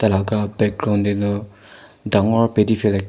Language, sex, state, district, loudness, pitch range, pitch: Nagamese, male, Nagaland, Kohima, -19 LUFS, 100-110 Hz, 105 Hz